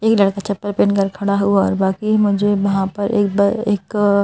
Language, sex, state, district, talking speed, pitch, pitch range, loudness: Hindi, male, Madhya Pradesh, Bhopal, 210 wpm, 200 Hz, 200-205 Hz, -17 LUFS